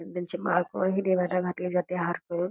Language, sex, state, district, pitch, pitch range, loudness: Marathi, female, Karnataka, Belgaum, 180 Hz, 175-180 Hz, -28 LUFS